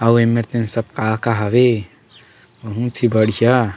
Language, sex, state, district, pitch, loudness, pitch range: Chhattisgarhi, male, Chhattisgarh, Sarguja, 115 Hz, -17 LUFS, 110-120 Hz